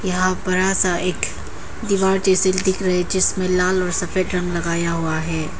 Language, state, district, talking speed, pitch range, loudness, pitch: Hindi, Arunachal Pradesh, Papum Pare, 170 wpm, 175-190 Hz, -19 LUFS, 185 Hz